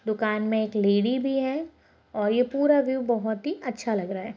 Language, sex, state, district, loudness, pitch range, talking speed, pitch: Hindi, female, Bihar, Begusarai, -25 LUFS, 215-265 Hz, 220 wpm, 230 Hz